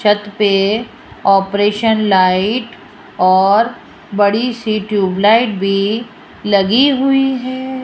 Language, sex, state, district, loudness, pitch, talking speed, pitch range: Hindi, female, Rajasthan, Jaipur, -14 LUFS, 210 Hz, 90 wpm, 200-240 Hz